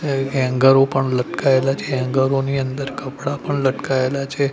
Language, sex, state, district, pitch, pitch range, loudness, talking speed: Gujarati, male, Gujarat, Gandhinagar, 135 Hz, 130-140 Hz, -19 LUFS, 160 wpm